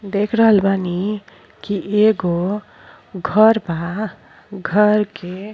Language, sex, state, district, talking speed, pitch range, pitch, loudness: Bhojpuri, female, Uttar Pradesh, Ghazipur, 110 wpm, 185-210 Hz, 200 Hz, -18 LUFS